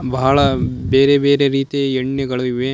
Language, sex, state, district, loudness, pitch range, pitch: Kannada, male, Karnataka, Koppal, -16 LUFS, 130-140 Hz, 135 Hz